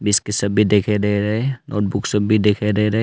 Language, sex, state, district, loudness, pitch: Hindi, male, Arunachal Pradesh, Longding, -18 LUFS, 105 Hz